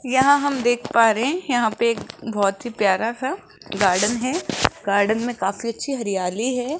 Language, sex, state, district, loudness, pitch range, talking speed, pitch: Hindi, female, Rajasthan, Jaipur, -21 LUFS, 205-260 Hz, 185 wpm, 235 Hz